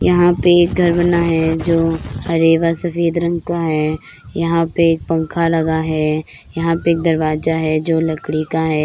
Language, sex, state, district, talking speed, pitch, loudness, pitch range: Hindi, female, Bihar, Begusarai, 190 wpm, 165 Hz, -16 LUFS, 160-170 Hz